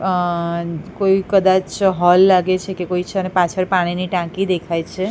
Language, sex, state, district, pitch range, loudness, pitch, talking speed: Gujarati, female, Gujarat, Gandhinagar, 175-190 Hz, -17 LUFS, 185 Hz, 175 wpm